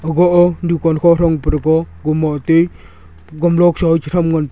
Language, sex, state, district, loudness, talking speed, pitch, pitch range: Wancho, male, Arunachal Pradesh, Longding, -14 LUFS, 120 wpm, 165 Hz, 155-170 Hz